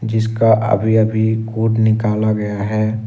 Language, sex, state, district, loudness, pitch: Hindi, male, Jharkhand, Ranchi, -16 LUFS, 110 Hz